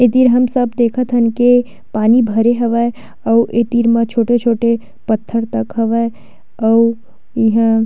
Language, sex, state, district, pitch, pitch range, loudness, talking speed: Chhattisgarhi, female, Chhattisgarh, Sukma, 230 Hz, 225-240 Hz, -14 LUFS, 155 wpm